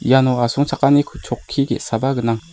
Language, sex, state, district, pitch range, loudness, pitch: Garo, male, Meghalaya, West Garo Hills, 120-140 Hz, -18 LUFS, 130 Hz